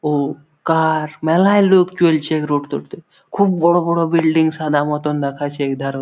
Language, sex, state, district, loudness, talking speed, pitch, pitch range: Bengali, male, West Bengal, Malda, -17 LUFS, 140 wpm, 155 Hz, 145-170 Hz